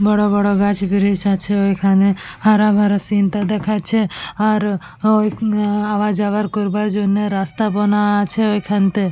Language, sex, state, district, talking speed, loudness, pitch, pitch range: Bengali, female, West Bengal, Purulia, 145 wpm, -17 LUFS, 205 Hz, 200-210 Hz